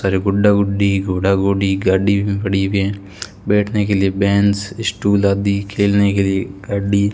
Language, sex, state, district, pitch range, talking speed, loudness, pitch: Hindi, male, Rajasthan, Bikaner, 95-100 Hz, 175 wpm, -17 LUFS, 100 Hz